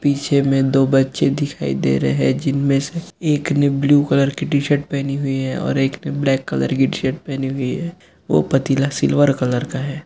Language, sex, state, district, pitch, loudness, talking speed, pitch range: Hindi, male, Jharkhand, Sahebganj, 140 Hz, -18 LUFS, 220 wpm, 135-145 Hz